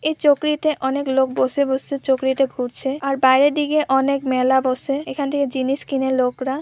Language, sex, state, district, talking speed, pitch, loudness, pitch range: Bengali, female, West Bengal, Purulia, 170 wpm, 270 Hz, -19 LUFS, 265-280 Hz